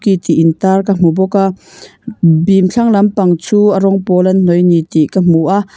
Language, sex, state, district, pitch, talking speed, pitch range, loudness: Mizo, female, Mizoram, Aizawl, 190 Hz, 230 wpm, 175-200 Hz, -11 LUFS